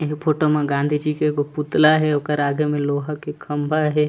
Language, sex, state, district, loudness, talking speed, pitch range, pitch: Chhattisgarhi, male, Chhattisgarh, Raigarh, -20 LUFS, 235 wpm, 145-150 Hz, 150 Hz